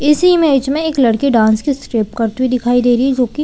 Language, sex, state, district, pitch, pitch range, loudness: Hindi, female, Chhattisgarh, Bilaspur, 255 Hz, 240-290 Hz, -14 LUFS